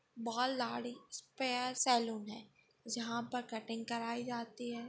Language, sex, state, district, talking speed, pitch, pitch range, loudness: Hindi, female, Goa, North and South Goa, 110 wpm, 235 Hz, 230-245 Hz, -38 LUFS